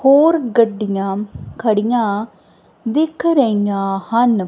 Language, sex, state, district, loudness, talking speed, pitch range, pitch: Punjabi, female, Punjab, Kapurthala, -17 LUFS, 80 wpm, 205-255 Hz, 225 Hz